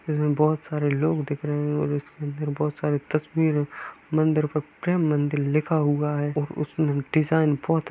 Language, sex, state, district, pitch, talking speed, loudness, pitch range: Hindi, male, Uttar Pradesh, Etah, 150 Hz, 165 wpm, -25 LUFS, 145-155 Hz